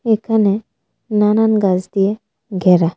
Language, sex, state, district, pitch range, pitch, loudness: Bengali, female, Tripura, West Tripura, 185-220 Hz, 210 Hz, -16 LUFS